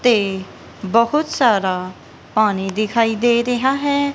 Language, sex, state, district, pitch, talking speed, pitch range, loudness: Punjabi, female, Punjab, Kapurthala, 230 Hz, 115 wpm, 195-245 Hz, -18 LUFS